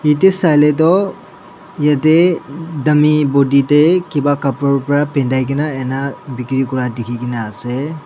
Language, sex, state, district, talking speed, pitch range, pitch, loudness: Nagamese, male, Nagaland, Dimapur, 125 wpm, 135-155 Hz, 145 Hz, -15 LUFS